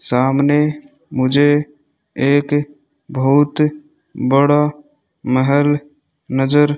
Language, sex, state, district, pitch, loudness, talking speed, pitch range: Hindi, male, Rajasthan, Bikaner, 145 Hz, -16 LUFS, 70 wpm, 140-150 Hz